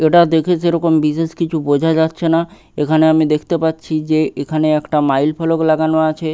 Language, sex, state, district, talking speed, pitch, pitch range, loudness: Bengali, male, West Bengal, Paschim Medinipur, 190 wpm, 160 Hz, 155-165 Hz, -15 LUFS